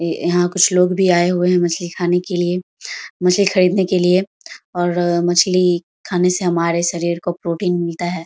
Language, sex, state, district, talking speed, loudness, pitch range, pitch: Hindi, female, Bihar, Samastipur, 190 wpm, -17 LUFS, 175-180 Hz, 175 Hz